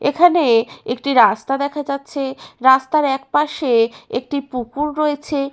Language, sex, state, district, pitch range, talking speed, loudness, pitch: Bengali, female, West Bengal, Paschim Medinipur, 250-295 Hz, 110 wpm, -18 LUFS, 275 Hz